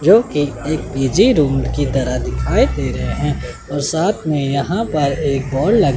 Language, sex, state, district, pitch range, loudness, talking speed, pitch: Hindi, male, Chandigarh, Chandigarh, 135-155 Hz, -17 LUFS, 180 wpm, 140 Hz